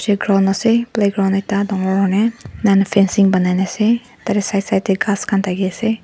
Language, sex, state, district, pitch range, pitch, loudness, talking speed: Nagamese, female, Nagaland, Dimapur, 195-215 Hz, 200 Hz, -17 LUFS, 170 wpm